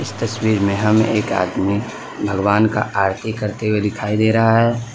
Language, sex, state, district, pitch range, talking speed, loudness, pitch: Hindi, male, Gujarat, Valsad, 100-110 Hz, 170 wpm, -18 LUFS, 105 Hz